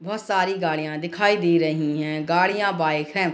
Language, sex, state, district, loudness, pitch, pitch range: Hindi, female, Bihar, Gopalganj, -22 LUFS, 170 Hz, 155-195 Hz